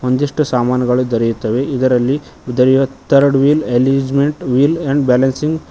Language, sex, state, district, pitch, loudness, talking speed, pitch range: Kannada, male, Karnataka, Koppal, 135 Hz, -14 LUFS, 115 wpm, 125-140 Hz